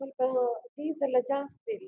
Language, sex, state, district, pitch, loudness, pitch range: Kannada, female, Karnataka, Dakshina Kannada, 275 Hz, -30 LUFS, 255-300 Hz